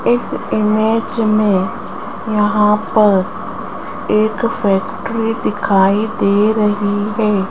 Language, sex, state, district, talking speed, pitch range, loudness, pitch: Hindi, female, Rajasthan, Jaipur, 90 wpm, 205-220 Hz, -16 LUFS, 210 Hz